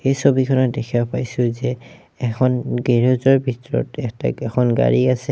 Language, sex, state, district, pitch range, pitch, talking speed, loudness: Assamese, male, Assam, Sonitpur, 120-130 Hz, 125 Hz, 145 wpm, -19 LUFS